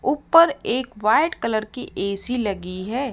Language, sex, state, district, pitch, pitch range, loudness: Hindi, female, Rajasthan, Jaipur, 235 Hz, 205-270 Hz, -21 LUFS